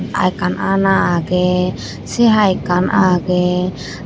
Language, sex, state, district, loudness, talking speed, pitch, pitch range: Chakma, female, Tripura, Unakoti, -15 LUFS, 120 wpm, 180 Hz, 180-195 Hz